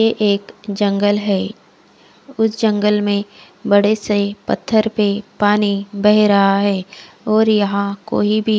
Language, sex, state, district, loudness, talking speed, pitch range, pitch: Hindi, female, Odisha, Khordha, -16 LUFS, 135 wpm, 200-215 Hz, 205 Hz